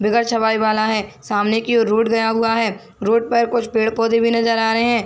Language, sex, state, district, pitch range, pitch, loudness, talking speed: Hindi, female, Chhattisgarh, Bilaspur, 220-230 Hz, 225 Hz, -18 LUFS, 250 wpm